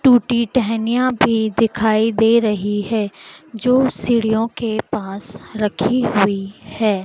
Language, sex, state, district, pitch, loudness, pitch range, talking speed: Hindi, female, Madhya Pradesh, Dhar, 225 Hz, -18 LUFS, 210-235 Hz, 120 wpm